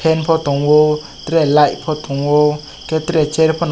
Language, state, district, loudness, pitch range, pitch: Kokborok, Tripura, West Tripura, -15 LUFS, 150-160 Hz, 150 Hz